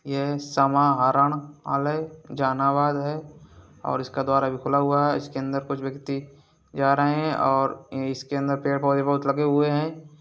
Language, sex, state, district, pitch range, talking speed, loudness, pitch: Hindi, male, Bihar, Gaya, 135-145 Hz, 160 wpm, -24 LUFS, 140 Hz